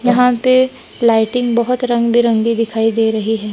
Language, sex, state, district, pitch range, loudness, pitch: Hindi, male, Maharashtra, Gondia, 225-250 Hz, -14 LUFS, 235 Hz